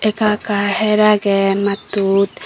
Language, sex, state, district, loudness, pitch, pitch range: Chakma, female, Tripura, Dhalai, -16 LUFS, 200 Hz, 200-215 Hz